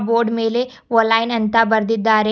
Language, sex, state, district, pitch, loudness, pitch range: Kannada, female, Karnataka, Bidar, 225 Hz, -17 LUFS, 225-230 Hz